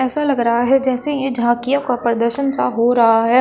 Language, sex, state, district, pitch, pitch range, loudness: Hindi, female, Uttar Pradesh, Shamli, 245 Hz, 235-270 Hz, -15 LUFS